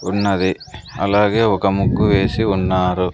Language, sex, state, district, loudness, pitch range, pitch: Telugu, male, Andhra Pradesh, Sri Satya Sai, -17 LUFS, 95-105 Hz, 100 Hz